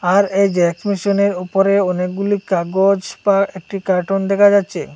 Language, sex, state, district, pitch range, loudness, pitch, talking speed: Bengali, male, Assam, Hailakandi, 185-200 Hz, -16 LUFS, 195 Hz, 145 wpm